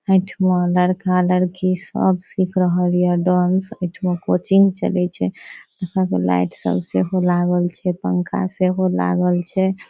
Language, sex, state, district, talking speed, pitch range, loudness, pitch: Maithili, female, Bihar, Saharsa, 145 wpm, 175-185 Hz, -19 LUFS, 180 Hz